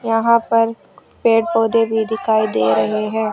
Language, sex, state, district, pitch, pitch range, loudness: Hindi, male, Rajasthan, Jaipur, 225 Hz, 215-230 Hz, -17 LUFS